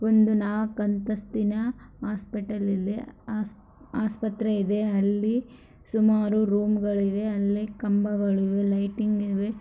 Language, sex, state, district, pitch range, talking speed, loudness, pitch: Kannada, female, Karnataka, Raichur, 205-215 Hz, 105 wpm, -26 LUFS, 210 Hz